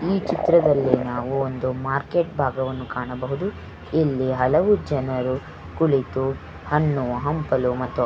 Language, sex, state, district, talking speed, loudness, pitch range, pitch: Kannada, female, Karnataka, Belgaum, 110 wpm, -23 LUFS, 130-150 Hz, 135 Hz